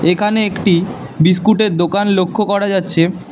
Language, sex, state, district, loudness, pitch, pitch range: Bengali, male, Karnataka, Bangalore, -14 LUFS, 190 Hz, 175-205 Hz